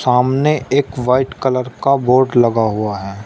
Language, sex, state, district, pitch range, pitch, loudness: Hindi, male, Uttar Pradesh, Shamli, 115-135 Hz, 125 Hz, -15 LUFS